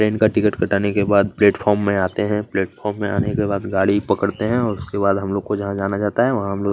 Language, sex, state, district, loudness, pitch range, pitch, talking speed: Hindi, male, Chhattisgarh, Kabirdham, -19 LUFS, 100-105 Hz, 100 Hz, 265 wpm